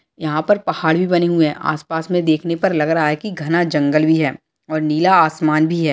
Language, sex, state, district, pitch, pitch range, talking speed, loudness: Hindi, female, Bihar, Jamui, 160 Hz, 155-170 Hz, 245 wpm, -17 LUFS